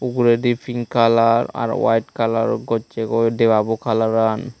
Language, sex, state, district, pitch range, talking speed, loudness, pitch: Chakma, male, Tripura, Unakoti, 115-120 Hz, 145 wpm, -18 LUFS, 115 Hz